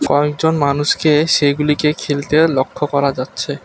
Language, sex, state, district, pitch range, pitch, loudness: Bengali, male, West Bengal, Alipurduar, 140-150 Hz, 145 Hz, -16 LUFS